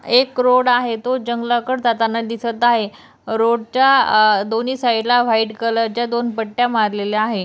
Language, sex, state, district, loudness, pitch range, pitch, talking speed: Marathi, female, Maharashtra, Dhule, -17 LUFS, 225-245 Hz, 235 Hz, 145 wpm